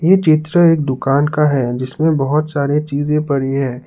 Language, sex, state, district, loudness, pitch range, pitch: Hindi, male, Assam, Sonitpur, -15 LUFS, 135-155 Hz, 145 Hz